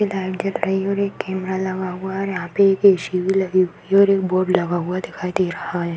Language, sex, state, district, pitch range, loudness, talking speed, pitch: Hindi, female, Uttar Pradesh, Varanasi, 185-195 Hz, -20 LUFS, 300 wpm, 190 Hz